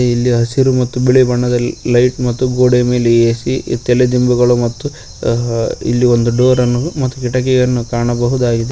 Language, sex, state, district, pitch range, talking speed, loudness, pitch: Kannada, male, Karnataka, Koppal, 120-125 Hz, 140 wpm, -13 LUFS, 125 Hz